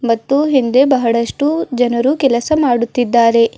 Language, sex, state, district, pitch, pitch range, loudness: Kannada, female, Karnataka, Bidar, 245 Hz, 235-275 Hz, -14 LUFS